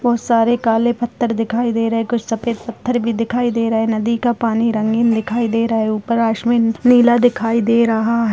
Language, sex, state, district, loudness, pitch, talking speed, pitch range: Kumaoni, female, Uttarakhand, Uttarkashi, -16 LUFS, 230 Hz, 225 wpm, 225-240 Hz